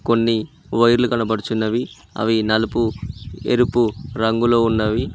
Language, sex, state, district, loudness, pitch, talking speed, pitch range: Telugu, male, Telangana, Mahabubabad, -19 LUFS, 115 Hz, 95 wpm, 110-120 Hz